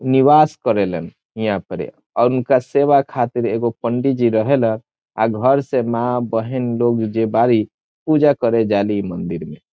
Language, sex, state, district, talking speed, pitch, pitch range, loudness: Bhojpuri, male, Bihar, Saran, 175 wpm, 120 Hz, 110-130 Hz, -18 LUFS